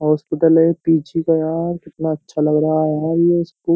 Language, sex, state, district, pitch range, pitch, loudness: Hindi, male, Uttar Pradesh, Jyotiba Phule Nagar, 155-165 Hz, 160 Hz, -17 LUFS